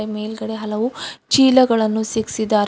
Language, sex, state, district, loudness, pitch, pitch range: Kannada, female, Karnataka, Bidar, -18 LUFS, 220 Hz, 215-230 Hz